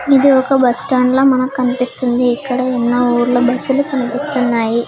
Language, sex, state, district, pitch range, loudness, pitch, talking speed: Telugu, female, Telangana, Hyderabad, 245-265 Hz, -14 LUFS, 255 Hz, 135 wpm